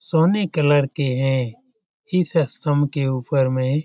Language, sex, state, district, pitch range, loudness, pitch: Hindi, male, Bihar, Jamui, 135-170 Hz, -20 LUFS, 145 Hz